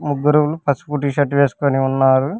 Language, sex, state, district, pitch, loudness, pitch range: Telugu, male, Telangana, Hyderabad, 140 Hz, -17 LUFS, 135-150 Hz